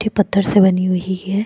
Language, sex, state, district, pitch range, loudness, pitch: Hindi, female, Goa, North and South Goa, 185-205 Hz, -16 LUFS, 195 Hz